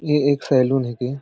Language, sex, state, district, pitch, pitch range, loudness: Sadri, male, Chhattisgarh, Jashpur, 135 Hz, 125-140 Hz, -19 LUFS